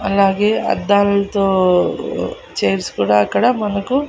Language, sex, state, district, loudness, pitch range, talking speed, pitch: Telugu, female, Andhra Pradesh, Annamaya, -16 LUFS, 180-205 Hz, 90 wpm, 200 Hz